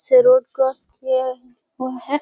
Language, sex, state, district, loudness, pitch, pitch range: Hindi, female, Bihar, Gaya, -19 LUFS, 265 Hz, 255-295 Hz